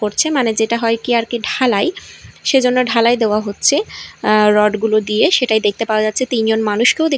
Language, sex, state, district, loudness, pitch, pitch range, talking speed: Bengali, female, Odisha, Malkangiri, -15 LUFS, 225 Hz, 215-250 Hz, 190 wpm